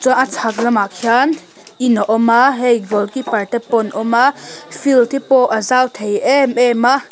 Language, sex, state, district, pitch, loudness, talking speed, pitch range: Mizo, female, Mizoram, Aizawl, 240 Hz, -14 LUFS, 200 wpm, 220-255 Hz